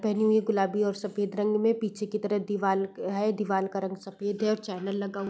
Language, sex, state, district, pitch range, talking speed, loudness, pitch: Hindi, female, Uttar Pradesh, Gorakhpur, 195-215 Hz, 260 wpm, -29 LUFS, 205 Hz